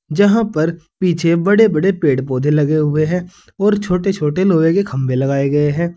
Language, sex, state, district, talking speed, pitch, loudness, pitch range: Hindi, male, Uttar Pradesh, Saharanpur, 190 wpm, 170 Hz, -15 LUFS, 150-195 Hz